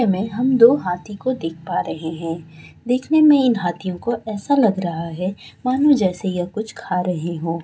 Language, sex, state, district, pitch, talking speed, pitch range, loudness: Hindi, female, West Bengal, Kolkata, 190 Hz, 195 wpm, 175-250 Hz, -20 LUFS